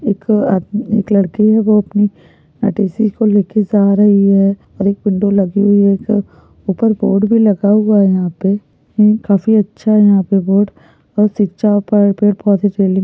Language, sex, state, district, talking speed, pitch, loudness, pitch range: Hindi, female, Bihar, Lakhisarai, 175 wpm, 205 Hz, -13 LUFS, 195-210 Hz